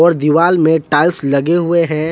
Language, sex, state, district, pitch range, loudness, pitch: Hindi, male, Jharkhand, Palamu, 150-170 Hz, -13 LUFS, 160 Hz